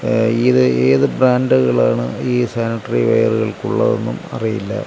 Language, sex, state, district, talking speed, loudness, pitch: Malayalam, male, Kerala, Kasaragod, 85 wpm, -16 LUFS, 105 Hz